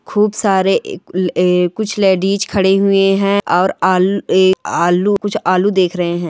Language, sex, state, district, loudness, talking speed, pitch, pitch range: Hindi, female, Chhattisgarh, Rajnandgaon, -14 LUFS, 190 wpm, 190 Hz, 180-200 Hz